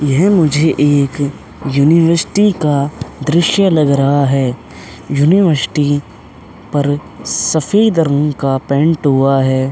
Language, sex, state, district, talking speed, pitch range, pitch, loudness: Hindi, male, Uttar Pradesh, Hamirpur, 105 wpm, 135-160 Hz, 145 Hz, -13 LUFS